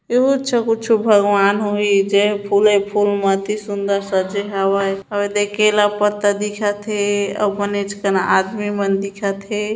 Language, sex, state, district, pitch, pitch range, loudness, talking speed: Hindi, female, Chhattisgarh, Bilaspur, 205 Hz, 200-210 Hz, -17 LUFS, 185 wpm